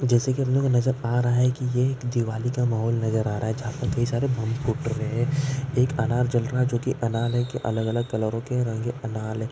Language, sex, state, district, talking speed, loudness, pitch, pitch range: Marwari, male, Rajasthan, Nagaur, 240 wpm, -25 LUFS, 120 Hz, 115-125 Hz